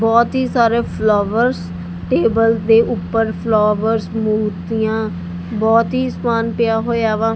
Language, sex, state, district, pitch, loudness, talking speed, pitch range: Punjabi, female, Punjab, Kapurthala, 220 Hz, -17 LUFS, 120 wpm, 200-225 Hz